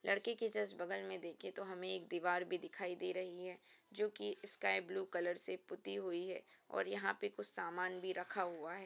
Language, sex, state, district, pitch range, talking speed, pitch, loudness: Hindi, female, Uttar Pradesh, Jyotiba Phule Nagar, 175-205 Hz, 215 wpm, 185 Hz, -43 LUFS